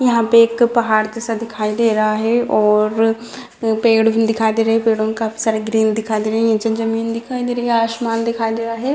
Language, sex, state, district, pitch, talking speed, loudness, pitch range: Hindi, female, Bihar, Madhepura, 225 Hz, 240 wpm, -17 LUFS, 220-230 Hz